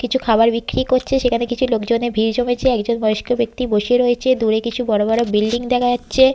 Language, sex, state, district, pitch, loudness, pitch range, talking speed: Bengali, female, West Bengal, Jhargram, 240 Hz, -17 LUFS, 225-250 Hz, 200 wpm